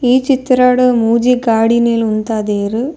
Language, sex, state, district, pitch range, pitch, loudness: Tulu, female, Karnataka, Dakshina Kannada, 225-250 Hz, 235 Hz, -13 LUFS